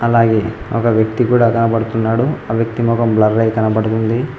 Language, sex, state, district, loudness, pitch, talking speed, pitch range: Telugu, male, Telangana, Mahabubabad, -15 LUFS, 115 Hz, 150 wpm, 110-115 Hz